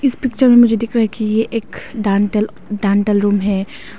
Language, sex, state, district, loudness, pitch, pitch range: Hindi, female, Arunachal Pradesh, Papum Pare, -15 LUFS, 215 Hz, 205-235 Hz